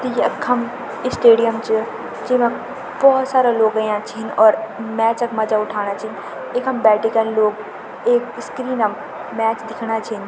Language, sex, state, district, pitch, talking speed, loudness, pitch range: Garhwali, female, Uttarakhand, Tehri Garhwal, 225 Hz, 140 wpm, -18 LUFS, 220-245 Hz